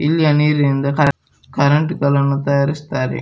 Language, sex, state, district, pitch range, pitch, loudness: Kannada, male, Karnataka, Dakshina Kannada, 140-150 Hz, 140 Hz, -16 LUFS